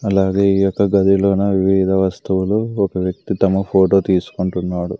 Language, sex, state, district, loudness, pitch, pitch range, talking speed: Telugu, male, Andhra Pradesh, Sri Satya Sai, -16 LUFS, 95 Hz, 95-100 Hz, 130 wpm